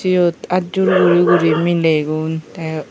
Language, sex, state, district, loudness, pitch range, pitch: Chakma, female, Tripura, Unakoti, -16 LUFS, 160-175 Hz, 170 Hz